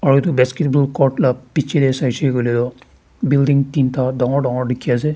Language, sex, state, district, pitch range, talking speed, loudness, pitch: Nagamese, male, Nagaland, Dimapur, 125-140 Hz, 185 wpm, -17 LUFS, 135 Hz